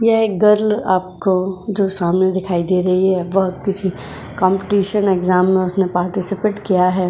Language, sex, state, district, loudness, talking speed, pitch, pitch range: Hindi, female, Uttar Pradesh, Jyotiba Phule Nagar, -17 LUFS, 160 wpm, 190 Hz, 185-200 Hz